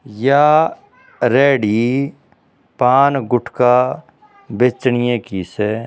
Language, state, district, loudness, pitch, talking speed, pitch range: Haryanvi, Haryana, Rohtak, -15 LUFS, 125 Hz, 70 wpm, 120-140 Hz